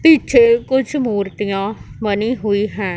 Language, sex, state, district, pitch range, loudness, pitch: Hindi, female, Punjab, Pathankot, 200-250 Hz, -17 LUFS, 215 Hz